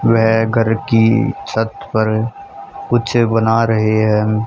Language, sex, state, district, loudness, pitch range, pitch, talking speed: Hindi, male, Haryana, Charkhi Dadri, -15 LUFS, 110-120 Hz, 115 Hz, 120 wpm